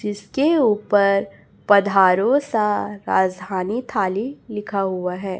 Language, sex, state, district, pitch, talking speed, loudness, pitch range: Hindi, female, Chhattisgarh, Raipur, 200 Hz, 100 wpm, -20 LUFS, 185-215 Hz